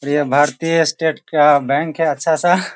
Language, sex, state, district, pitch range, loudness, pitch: Hindi, male, Bihar, Sitamarhi, 145-165 Hz, -16 LUFS, 155 Hz